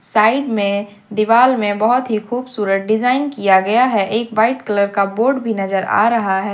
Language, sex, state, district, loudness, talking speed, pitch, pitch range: Hindi, female, Jharkhand, Deoghar, -16 LUFS, 190 wpm, 215 Hz, 200-240 Hz